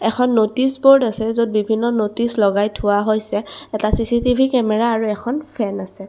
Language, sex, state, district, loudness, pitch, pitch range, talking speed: Assamese, female, Assam, Kamrup Metropolitan, -18 LUFS, 225 Hz, 215-250 Hz, 170 wpm